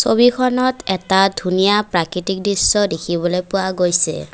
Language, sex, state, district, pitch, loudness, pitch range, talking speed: Assamese, female, Assam, Kamrup Metropolitan, 190 Hz, -17 LUFS, 175-205 Hz, 110 wpm